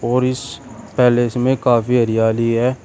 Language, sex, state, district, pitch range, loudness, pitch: Hindi, male, Uttar Pradesh, Shamli, 120-125 Hz, -16 LUFS, 120 Hz